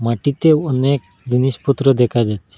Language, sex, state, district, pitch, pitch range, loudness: Bengali, male, Assam, Hailakandi, 130 Hz, 115-140 Hz, -16 LUFS